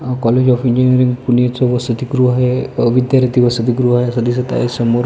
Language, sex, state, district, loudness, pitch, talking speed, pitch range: Marathi, male, Maharashtra, Pune, -14 LUFS, 125 Hz, 165 wpm, 120-125 Hz